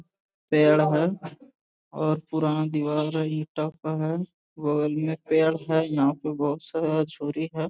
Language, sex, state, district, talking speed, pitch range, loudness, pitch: Hindi, male, Bihar, Jamui, 150 wpm, 150-160 Hz, -25 LUFS, 155 Hz